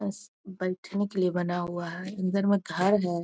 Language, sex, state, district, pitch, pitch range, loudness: Hindi, female, Bihar, Muzaffarpur, 185 Hz, 175-200 Hz, -29 LUFS